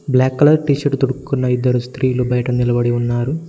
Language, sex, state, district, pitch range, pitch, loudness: Telugu, male, Telangana, Mahabubabad, 125-140 Hz, 130 Hz, -17 LUFS